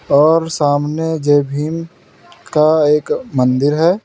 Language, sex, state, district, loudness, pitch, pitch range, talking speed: Hindi, male, Uttar Pradesh, Lalitpur, -15 LUFS, 150 Hz, 145-160 Hz, 120 wpm